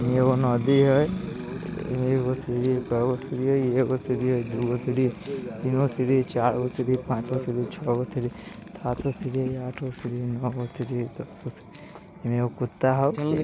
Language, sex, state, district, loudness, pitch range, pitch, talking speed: Bajjika, male, Bihar, Vaishali, -26 LUFS, 125-130 Hz, 130 Hz, 240 wpm